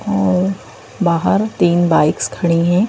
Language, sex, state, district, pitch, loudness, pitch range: Hindi, female, Madhya Pradesh, Bhopal, 170 Hz, -15 LUFS, 110-175 Hz